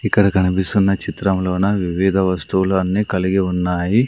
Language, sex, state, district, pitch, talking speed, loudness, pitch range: Telugu, male, Andhra Pradesh, Sri Satya Sai, 95 Hz, 115 wpm, -17 LUFS, 90-100 Hz